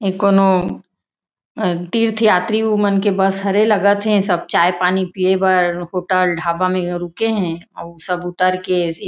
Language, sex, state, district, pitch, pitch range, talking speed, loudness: Chhattisgarhi, female, Chhattisgarh, Raigarh, 185 Hz, 175-200 Hz, 150 wpm, -17 LUFS